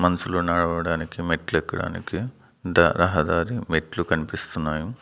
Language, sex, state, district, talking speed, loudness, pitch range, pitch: Telugu, male, Andhra Pradesh, Manyam, 95 wpm, -24 LUFS, 80-90 Hz, 85 Hz